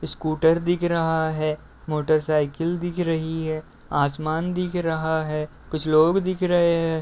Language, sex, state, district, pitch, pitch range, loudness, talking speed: Hindi, male, Uttar Pradesh, Deoria, 160 Hz, 155-170 Hz, -23 LUFS, 145 wpm